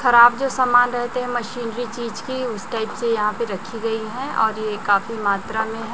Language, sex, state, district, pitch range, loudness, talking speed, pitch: Hindi, female, Chhattisgarh, Raipur, 220-245 Hz, -21 LUFS, 220 wpm, 230 Hz